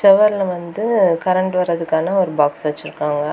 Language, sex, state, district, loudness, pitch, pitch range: Tamil, female, Tamil Nadu, Kanyakumari, -17 LUFS, 175 Hz, 155-195 Hz